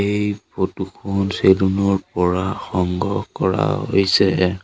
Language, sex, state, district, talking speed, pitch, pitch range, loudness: Assamese, male, Assam, Sonitpur, 105 wpm, 95 Hz, 95-100 Hz, -19 LUFS